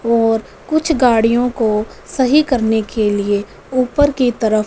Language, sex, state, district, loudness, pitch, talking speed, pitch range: Hindi, female, Punjab, Fazilka, -16 LUFS, 230 Hz, 140 wpm, 220-255 Hz